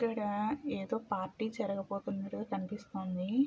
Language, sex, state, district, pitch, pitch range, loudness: Telugu, female, Andhra Pradesh, Chittoor, 205 Hz, 195-225 Hz, -37 LUFS